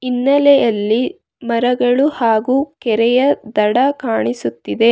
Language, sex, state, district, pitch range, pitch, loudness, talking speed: Kannada, female, Karnataka, Bangalore, 225-270 Hz, 245 Hz, -15 LUFS, 75 wpm